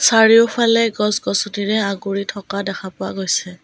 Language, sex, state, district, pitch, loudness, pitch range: Assamese, female, Assam, Kamrup Metropolitan, 205 Hz, -17 LUFS, 195-225 Hz